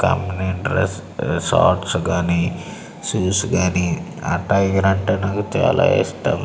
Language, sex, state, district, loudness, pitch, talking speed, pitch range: Telugu, male, Andhra Pradesh, Srikakulam, -19 LUFS, 95 Hz, 110 wpm, 90-100 Hz